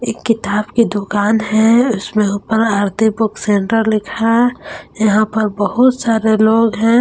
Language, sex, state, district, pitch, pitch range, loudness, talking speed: Hindi, female, Jharkhand, Palamu, 220 Hz, 210-230 Hz, -14 LUFS, 145 wpm